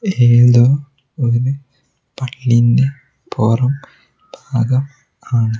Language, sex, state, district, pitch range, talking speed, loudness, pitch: Malayalam, male, Kerala, Kozhikode, 120-135 Hz, 55 wpm, -15 LUFS, 130 Hz